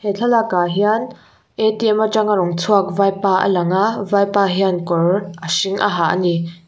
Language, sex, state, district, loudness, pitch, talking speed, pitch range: Mizo, female, Mizoram, Aizawl, -17 LUFS, 195 Hz, 170 wpm, 180-210 Hz